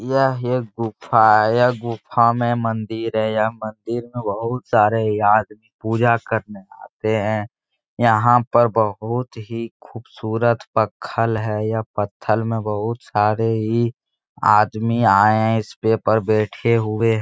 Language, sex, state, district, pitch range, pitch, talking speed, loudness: Hindi, male, Bihar, Jahanabad, 110-115 Hz, 110 Hz, 140 wpm, -19 LUFS